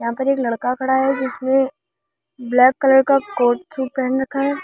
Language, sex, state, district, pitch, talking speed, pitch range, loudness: Hindi, female, Delhi, New Delhi, 265 Hz, 195 wpm, 255-270 Hz, -18 LUFS